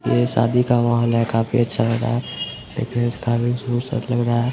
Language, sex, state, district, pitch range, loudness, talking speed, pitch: Hindi, male, Bihar, Samastipur, 115-120 Hz, -20 LUFS, 185 wpm, 120 Hz